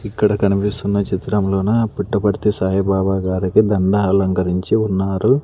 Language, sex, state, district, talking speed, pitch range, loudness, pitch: Telugu, male, Andhra Pradesh, Sri Satya Sai, 100 wpm, 95-105 Hz, -17 LUFS, 100 Hz